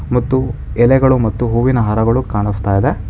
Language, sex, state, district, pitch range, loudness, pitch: Kannada, male, Karnataka, Bangalore, 105-130 Hz, -15 LUFS, 120 Hz